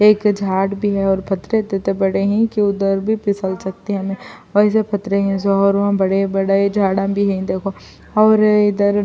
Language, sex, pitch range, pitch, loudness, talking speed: Urdu, female, 195-205 Hz, 200 Hz, -17 LUFS, 190 wpm